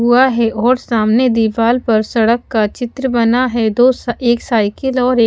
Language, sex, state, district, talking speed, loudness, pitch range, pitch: Hindi, female, Haryana, Charkhi Dadri, 180 wpm, -14 LUFS, 225-250 Hz, 235 Hz